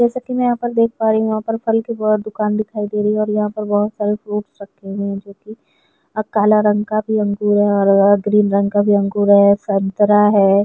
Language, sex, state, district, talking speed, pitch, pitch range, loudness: Hindi, female, Chhattisgarh, Sukma, 250 wpm, 210 Hz, 205-215 Hz, -16 LUFS